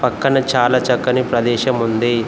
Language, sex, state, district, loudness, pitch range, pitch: Telugu, male, Telangana, Komaram Bheem, -16 LUFS, 120-130 Hz, 125 Hz